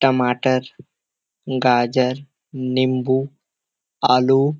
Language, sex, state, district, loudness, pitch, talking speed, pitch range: Hindi, male, Bihar, Kishanganj, -19 LUFS, 130 Hz, 65 wpm, 125-135 Hz